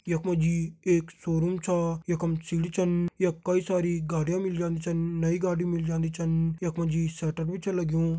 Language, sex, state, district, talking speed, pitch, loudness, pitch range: Garhwali, male, Uttarakhand, Tehri Garhwal, 205 wpm, 170 Hz, -28 LUFS, 165-175 Hz